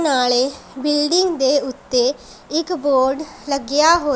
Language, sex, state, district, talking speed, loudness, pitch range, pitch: Punjabi, female, Punjab, Pathankot, 115 wpm, -18 LUFS, 270-325 Hz, 290 Hz